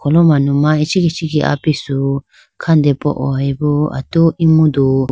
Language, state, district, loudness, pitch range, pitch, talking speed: Idu Mishmi, Arunachal Pradesh, Lower Dibang Valley, -14 LUFS, 140-160 Hz, 150 Hz, 115 wpm